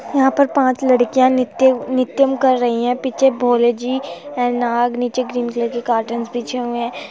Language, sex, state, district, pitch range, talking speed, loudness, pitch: Hindi, female, Uttar Pradesh, Muzaffarnagar, 240-260 Hz, 170 wpm, -17 LUFS, 250 Hz